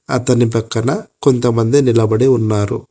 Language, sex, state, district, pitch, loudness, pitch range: Telugu, male, Telangana, Hyderabad, 120 Hz, -14 LUFS, 115-130 Hz